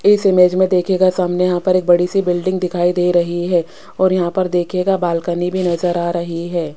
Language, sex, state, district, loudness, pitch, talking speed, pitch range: Hindi, female, Rajasthan, Jaipur, -16 LUFS, 180 Hz, 220 wpm, 175-185 Hz